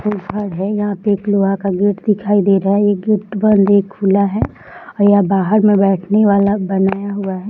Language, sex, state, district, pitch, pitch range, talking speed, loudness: Hindi, female, Bihar, Samastipur, 200 Hz, 195-205 Hz, 230 wpm, -15 LUFS